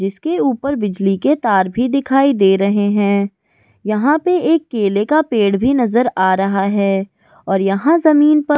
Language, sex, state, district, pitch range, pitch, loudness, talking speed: Hindi, female, Goa, North and South Goa, 195-280 Hz, 215 Hz, -15 LUFS, 180 wpm